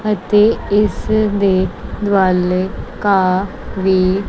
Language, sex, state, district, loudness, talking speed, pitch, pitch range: Punjabi, female, Punjab, Kapurthala, -16 LUFS, 70 wpm, 195 Hz, 185-210 Hz